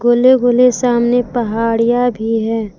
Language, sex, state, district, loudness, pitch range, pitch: Hindi, female, Jharkhand, Palamu, -14 LUFS, 225-245 Hz, 240 Hz